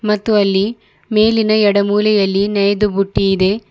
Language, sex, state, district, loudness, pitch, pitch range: Kannada, female, Karnataka, Bidar, -14 LUFS, 205 Hz, 200-215 Hz